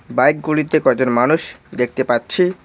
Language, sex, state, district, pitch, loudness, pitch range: Bengali, male, West Bengal, Cooch Behar, 145 Hz, -17 LUFS, 125-155 Hz